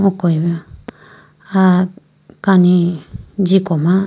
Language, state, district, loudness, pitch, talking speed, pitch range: Idu Mishmi, Arunachal Pradesh, Lower Dibang Valley, -15 LUFS, 180 Hz, 90 wpm, 170-190 Hz